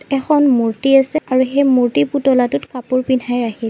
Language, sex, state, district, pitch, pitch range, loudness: Assamese, female, Assam, Sonitpur, 255 Hz, 245-270 Hz, -15 LUFS